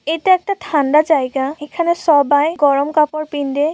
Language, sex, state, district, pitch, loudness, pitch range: Bengali, female, West Bengal, Purulia, 300 Hz, -16 LUFS, 290-325 Hz